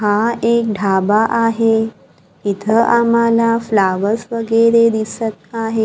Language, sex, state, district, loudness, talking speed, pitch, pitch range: Marathi, female, Maharashtra, Gondia, -15 LUFS, 105 wpm, 225 Hz, 210-230 Hz